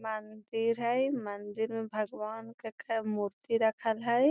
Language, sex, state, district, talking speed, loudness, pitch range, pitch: Magahi, female, Bihar, Gaya, 155 wpm, -33 LUFS, 215-230 Hz, 225 Hz